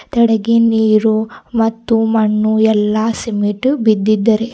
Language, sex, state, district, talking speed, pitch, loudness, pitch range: Kannada, female, Karnataka, Bidar, 95 wpm, 220 Hz, -14 LUFS, 215-230 Hz